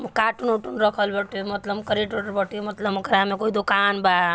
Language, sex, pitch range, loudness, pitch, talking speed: Bhojpuri, female, 200-215 Hz, -23 LUFS, 205 Hz, 220 wpm